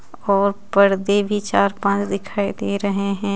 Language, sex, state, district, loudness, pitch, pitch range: Hindi, female, Jharkhand, Ranchi, -19 LUFS, 200 Hz, 200-205 Hz